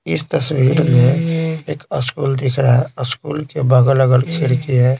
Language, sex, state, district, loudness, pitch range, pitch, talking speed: Hindi, male, Bihar, Patna, -16 LUFS, 130-150 Hz, 135 Hz, 170 wpm